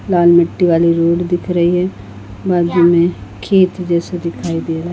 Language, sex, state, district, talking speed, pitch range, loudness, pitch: Hindi, female, Goa, North and South Goa, 170 wpm, 170-180 Hz, -14 LUFS, 170 Hz